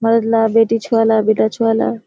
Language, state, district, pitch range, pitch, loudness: Surjapuri, Bihar, Kishanganj, 220-230 Hz, 225 Hz, -15 LUFS